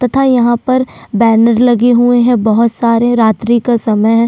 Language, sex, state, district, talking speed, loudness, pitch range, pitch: Hindi, female, Chhattisgarh, Sukma, 180 wpm, -11 LUFS, 230-245 Hz, 235 Hz